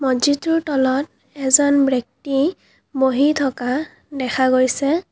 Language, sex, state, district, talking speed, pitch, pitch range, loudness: Assamese, female, Assam, Kamrup Metropolitan, 95 wpm, 275 Hz, 260-290 Hz, -18 LUFS